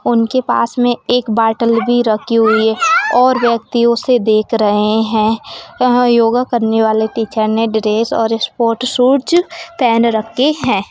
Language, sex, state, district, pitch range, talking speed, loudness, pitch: Hindi, female, Bihar, Saran, 220-245 Hz, 155 wpm, -13 LUFS, 230 Hz